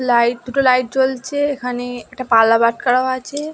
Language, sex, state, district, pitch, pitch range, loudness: Bengali, female, West Bengal, Dakshin Dinajpur, 255 Hz, 240-265 Hz, -17 LUFS